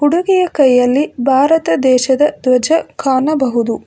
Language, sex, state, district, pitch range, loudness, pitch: Kannada, female, Karnataka, Bangalore, 255-310 Hz, -13 LUFS, 275 Hz